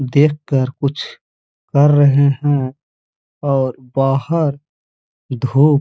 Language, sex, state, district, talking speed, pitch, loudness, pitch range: Hindi, male, Uttar Pradesh, Hamirpur, 95 wpm, 140 Hz, -16 LUFS, 135-145 Hz